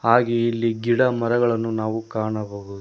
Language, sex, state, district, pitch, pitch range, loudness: Kannada, male, Karnataka, Koppal, 115 Hz, 110-120 Hz, -22 LUFS